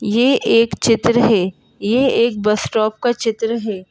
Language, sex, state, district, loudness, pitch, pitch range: Hindi, female, Madhya Pradesh, Bhopal, -16 LUFS, 225 Hz, 210-235 Hz